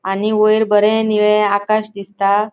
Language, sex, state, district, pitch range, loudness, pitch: Konkani, female, Goa, North and South Goa, 200-215 Hz, -15 LUFS, 210 Hz